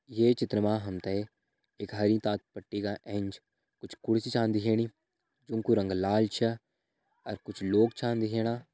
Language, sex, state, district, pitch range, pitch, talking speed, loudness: Hindi, male, Uttarakhand, Tehri Garhwal, 105-115 Hz, 110 Hz, 170 wpm, -30 LUFS